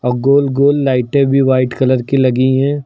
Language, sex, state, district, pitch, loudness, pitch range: Hindi, male, Uttar Pradesh, Lucknow, 135 Hz, -13 LUFS, 130-140 Hz